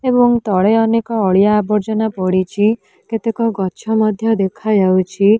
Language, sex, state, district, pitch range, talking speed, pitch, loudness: Odia, female, Odisha, Nuapada, 195-225 Hz, 110 wpm, 215 Hz, -15 LUFS